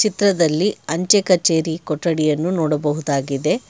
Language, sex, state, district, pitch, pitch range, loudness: Kannada, male, Karnataka, Bangalore, 165 Hz, 150-185 Hz, -18 LUFS